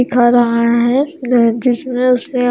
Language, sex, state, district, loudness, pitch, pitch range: Hindi, female, Himachal Pradesh, Shimla, -13 LUFS, 245 Hz, 240-255 Hz